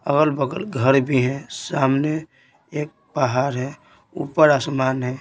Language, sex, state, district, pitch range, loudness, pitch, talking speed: Hindi, male, Bihar, Patna, 130-150 Hz, -21 LUFS, 135 Hz, 140 wpm